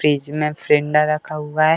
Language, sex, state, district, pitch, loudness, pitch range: Hindi, male, Uttar Pradesh, Deoria, 150 Hz, -19 LUFS, 150-155 Hz